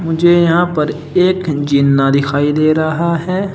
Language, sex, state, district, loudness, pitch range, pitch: Hindi, male, Uttar Pradesh, Shamli, -13 LUFS, 145-175 Hz, 155 Hz